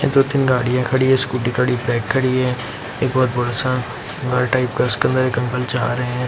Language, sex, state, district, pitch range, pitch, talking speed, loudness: Hindi, male, Bihar, Lakhisarai, 125-130 Hz, 125 Hz, 240 wpm, -19 LUFS